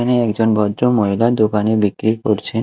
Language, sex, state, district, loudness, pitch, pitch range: Bengali, male, Odisha, Malkangiri, -16 LUFS, 110 Hz, 105-115 Hz